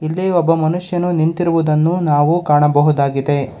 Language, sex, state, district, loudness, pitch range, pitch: Kannada, male, Karnataka, Bangalore, -15 LUFS, 145-175 Hz, 160 Hz